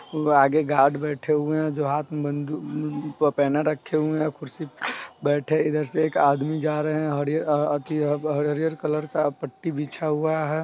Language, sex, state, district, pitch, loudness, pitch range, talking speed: Hindi, male, Bihar, Sitamarhi, 150 Hz, -24 LUFS, 145-155 Hz, 205 wpm